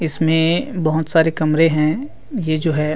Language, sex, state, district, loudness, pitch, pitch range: Chhattisgarhi, male, Chhattisgarh, Rajnandgaon, -17 LUFS, 160 Hz, 155-165 Hz